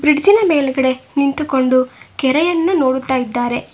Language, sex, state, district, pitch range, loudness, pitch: Kannada, female, Karnataka, Bangalore, 260-305 Hz, -15 LUFS, 270 Hz